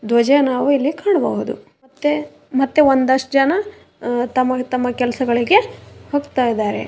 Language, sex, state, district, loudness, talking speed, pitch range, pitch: Kannada, female, Karnataka, Raichur, -17 LUFS, 115 wpm, 250-290 Hz, 265 Hz